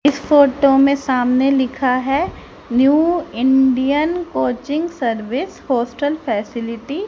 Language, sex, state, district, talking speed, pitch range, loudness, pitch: Hindi, female, Haryana, Charkhi Dadri, 110 wpm, 250-290 Hz, -17 LUFS, 270 Hz